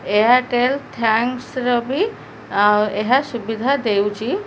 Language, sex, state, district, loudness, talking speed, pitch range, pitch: Odia, female, Odisha, Khordha, -18 LUFS, 105 wpm, 215-255 Hz, 245 Hz